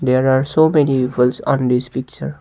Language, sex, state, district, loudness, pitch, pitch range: English, male, Assam, Kamrup Metropolitan, -16 LUFS, 130 Hz, 125-135 Hz